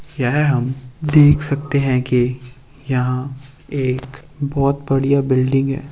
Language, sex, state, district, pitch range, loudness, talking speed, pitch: Hindi, male, Bihar, Samastipur, 130-140 Hz, -18 LUFS, 120 wpm, 135 Hz